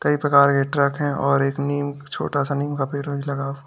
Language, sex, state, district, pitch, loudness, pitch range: Hindi, male, Uttar Pradesh, Lalitpur, 140 Hz, -21 LUFS, 140-145 Hz